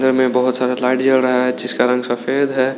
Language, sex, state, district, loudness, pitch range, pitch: Hindi, male, Jharkhand, Garhwa, -16 LUFS, 125-130 Hz, 125 Hz